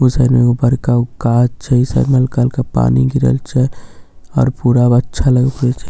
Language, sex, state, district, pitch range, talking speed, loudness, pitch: Maithili, male, Bihar, Katihar, 115-130 Hz, 215 wpm, -14 LUFS, 125 Hz